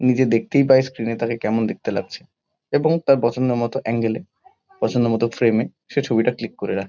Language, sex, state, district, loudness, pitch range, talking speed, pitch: Bengali, male, West Bengal, Kolkata, -20 LUFS, 115-135 Hz, 210 wpm, 120 Hz